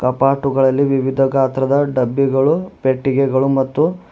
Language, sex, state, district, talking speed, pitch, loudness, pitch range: Kannada, male, Karnataka, Bidar, 85 wpm, 135 Hz, -16 LUFS, 130-140 Hz